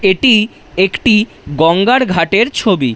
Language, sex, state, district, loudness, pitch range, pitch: Bengali, male, West Bengal, Dakshin Dinajpur, -12 LUFS, 170-230 Hz, 195 Hz